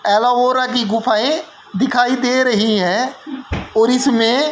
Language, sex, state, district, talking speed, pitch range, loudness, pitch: Hindi, male, Haryana, Jhajjar, 120 wpm, 225-260 Hz, -16 LUFS, 250 Hz